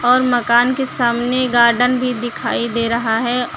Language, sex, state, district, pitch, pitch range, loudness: Hindi, female, Uttar Pradesh, Lucknow, 245 Hz, 235-250 Hz, -16 LUFS